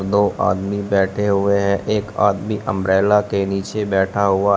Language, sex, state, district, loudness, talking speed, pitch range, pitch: Hindi, male, Uttar Pradesh, Shamli, -18 LUFS, 155 wpm, 95-105 Hz, 100 Hz